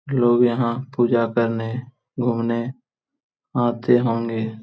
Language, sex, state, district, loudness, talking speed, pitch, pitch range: Hindi, male, Jharkhand, Jamtara, -21 LUFS, 90 wpm, 120 Hz, 115-125 Hz